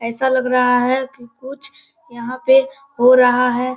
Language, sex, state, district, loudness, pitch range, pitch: Hindi, female, Bihar, Kishanganj, -16 LUFS, 245-265 Hz, 255 Hz